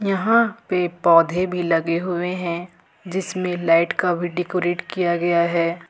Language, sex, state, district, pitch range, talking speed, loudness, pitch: Hindi, female, Jharkhand, Ranchi, 170-185 Hz, 150 wpm, -20 LUFS, 175 Hz